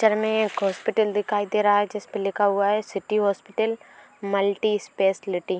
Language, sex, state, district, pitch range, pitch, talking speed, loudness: Hindi, female, Uttar Pradesh, Etah, 200-215 Hz, 205 Hz, 180 wpm, -24 LUFS